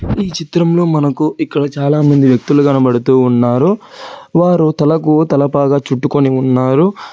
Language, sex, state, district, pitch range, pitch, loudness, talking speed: Telugu, male, Telangana, Hyderabad, 135-160 Hz, 145 Hz, -12 LUFS, 120 wpm